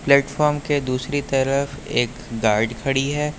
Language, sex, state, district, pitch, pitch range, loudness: Hindi, male, Uttar Pradesh, Lucknow, 140 Hz, 130-145 Hz, -21 LUFS